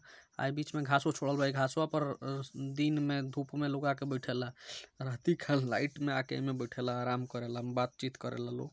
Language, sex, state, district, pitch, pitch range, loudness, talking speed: Bhojpuri, male, Bihar, Gopalganj, 135 Hz, 125-145 Hz, -35 LUFS, 245 wpm